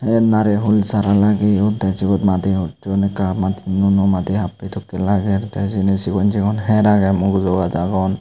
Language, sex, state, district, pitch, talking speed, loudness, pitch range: Chakma, male, Tripura, Unakoti, 100 Hz, 175 wpm, -17 LUFS, 95-105 Hz